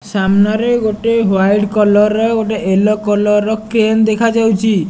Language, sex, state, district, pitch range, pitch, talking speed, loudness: Odia, male, Odisha, Nuapada, 205-220 Hz, 215 Hz, 135 wpm, -13 LUFS